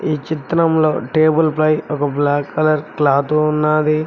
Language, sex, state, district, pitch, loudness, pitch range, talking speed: Telugu, male, Telangana, Mahabubabad, 155 Hz, -16 LUFS, 145-155 Hz, 135 wpm